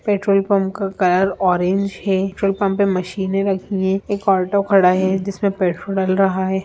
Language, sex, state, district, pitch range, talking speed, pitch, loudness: Hindi, female, Bihar, Sitamarhi, 190-200 Hz, 170 wpm, 195 Hz, -18 LUFS